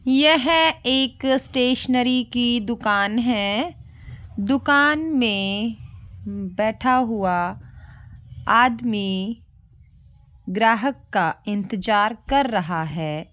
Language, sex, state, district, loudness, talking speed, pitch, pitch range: Hindi, male, Jharkhand, Jamtara, -20 LUFS, 75 wpm, 230 Hz, 200-255 Hz